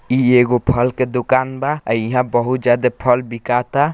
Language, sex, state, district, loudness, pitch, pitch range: Hindi, male, Bihar, Gopalganj, -17 LUFS, 125 Hz, 120-130 Hz